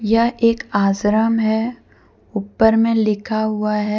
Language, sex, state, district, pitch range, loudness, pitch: Hindi, female, Jharkhand, Deoghar, 210-225 Hz, -18 LUFS, 220 Hz